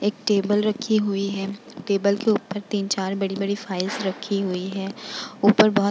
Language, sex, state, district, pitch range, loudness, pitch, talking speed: Hindi, female, Bihar, Vaishali, 195-210 Hz, -23 LUFS, 200 Hz, 215 wpm